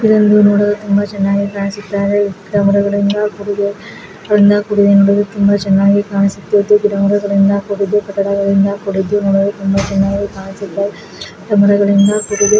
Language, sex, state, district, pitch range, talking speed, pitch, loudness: Kannada, female, Karnataka, Mysore, 200-205 Hz, 80 wpm, 200 Hz, -13 LUFS